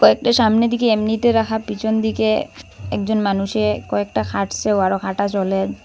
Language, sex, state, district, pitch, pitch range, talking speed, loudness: Bengali, female, Assam, Hailakandi, 210 Hz, 190-220 Hz, 145 wpm, -19 LUFS